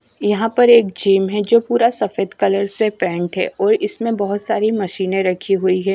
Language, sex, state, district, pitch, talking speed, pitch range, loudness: Hindi, female, Himachal Pradesh, Shimla, 205 Hz, 200 wpm, 190-230 Hz, -17 LUFS